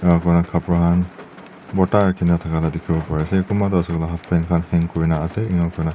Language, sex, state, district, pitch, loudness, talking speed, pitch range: Nagamese, male, Nagaland, Dimapur, 85 Hz, -19 LUFS, 230 wpm, 80-90 Hz